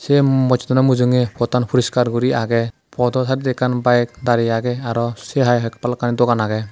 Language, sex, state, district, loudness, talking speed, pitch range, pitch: Chakma, male, Tripura, West Tripura, -18 LUFS, 170 wpm, 120-125 Hz, 125 Hz